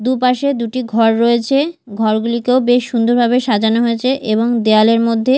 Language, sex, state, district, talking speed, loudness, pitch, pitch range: Bengali, female, Odisha, Malkangiri, 145 wpm, -14 LUFS, 235 Hz, 225-255 Hz